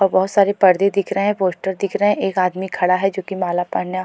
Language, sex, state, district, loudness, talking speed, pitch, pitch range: Hindi, female, Uttarakhand, Tehri Garhwal, -18 LUFS, 280 wpm, 190 Hz, 185-195 Hz